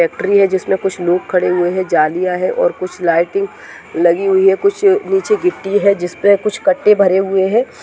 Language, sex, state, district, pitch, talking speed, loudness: Hindi, male, Rajasthan, Nagaur, 195 Hz, 200 wpm, -14 LUFS